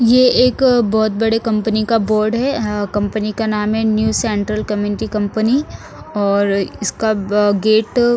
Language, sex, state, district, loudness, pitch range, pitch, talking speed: Hindi, female, Punjab, Fazilka, -16 LUFS, 210-225 Hz, 215 Hz, 160 wpm